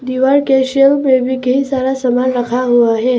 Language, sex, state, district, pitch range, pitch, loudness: Hindi, female, Arunachal Pradesh, Papum Pare, 250-265 Hz, 260 Hz, -13 LUFS